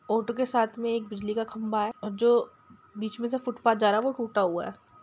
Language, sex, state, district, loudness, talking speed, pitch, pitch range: Hindi, male, Bihar, Sitamarhi, -28 LUFS, 250 wpm, 225 Hz, 210-235 Hz